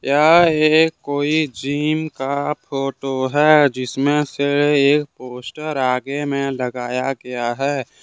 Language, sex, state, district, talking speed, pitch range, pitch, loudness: Hindi, male, Jharkhand, Deoghar, 120 wpm, 130-150 Hz, 140 Hz, -18 LUFS